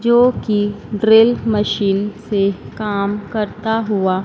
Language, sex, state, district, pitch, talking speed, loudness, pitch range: Hindi, female, Madhya Pradesh, Dhar, 210 Hz, 115 wpm, -17 LUFS, 200-220 Hz